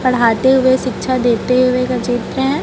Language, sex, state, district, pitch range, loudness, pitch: Hindi, female, Chhattisgarh, Raipur, 245-260 Hz, -15 LUFS, 255 Hz